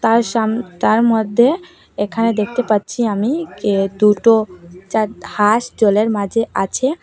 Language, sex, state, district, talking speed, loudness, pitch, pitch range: Bengali, female, Assam, Hailakandi, 130 wpm, -16 LUFS, 220 Hz, 205-235 Hz